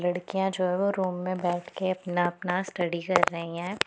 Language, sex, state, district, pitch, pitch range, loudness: Hindi, female, Punjab, Pathankot, 180 Hz, 175-185 Hz, -28 LUFS